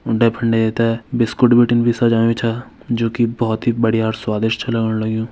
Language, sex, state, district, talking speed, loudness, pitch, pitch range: Hindi, male, Uttarakhand, Tehri Garhwal, 215 wpm, -17 LUFS, 115 Hz, 110-120 Hz